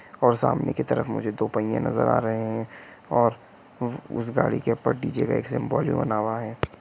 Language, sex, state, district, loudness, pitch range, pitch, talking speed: Hindi, male, Jharkhand, Sahebganj, -25 LUFS, 110-120 Hz, 115 Hz, 210 wpm